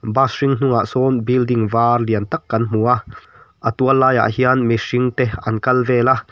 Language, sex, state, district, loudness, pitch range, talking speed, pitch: Mizo, male, Mizoram, Aizawl, -17 LUFS, 115-130 Hz, 200 wpm, 125 Hz